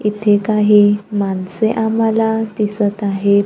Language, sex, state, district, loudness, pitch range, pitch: Marathi, female, Maharashtra, Gondia, -15 LUFS, 200-220 Hz, 210 Hz